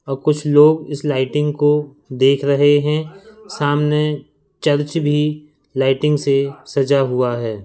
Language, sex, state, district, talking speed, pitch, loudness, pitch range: Hindi, male, Madhya Pradesh, Katni, 135 wpm, 145 Hz, -17 LUFS, 140-150 Hz